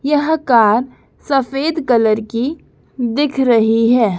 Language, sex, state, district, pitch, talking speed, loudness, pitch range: Hindi, female, Madhya Pradesh, Dhar, 250 Hz, 115 wpm, -15 LUFS, 230-285 Hz